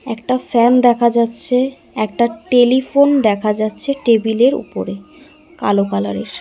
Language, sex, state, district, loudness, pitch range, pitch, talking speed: Bengali, female, West Bengal, Alipurduar, -15 LUFS, 220-265 Hz, 240 Hz, 105 wpm